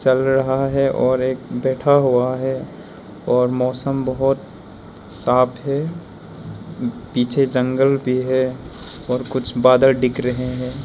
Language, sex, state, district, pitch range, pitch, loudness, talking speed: Hindi, male, Arunachal Pradesh, Lower Dibang Valley, 125-135 Hz, 130 Hz, -19 LUFS, 125 wpm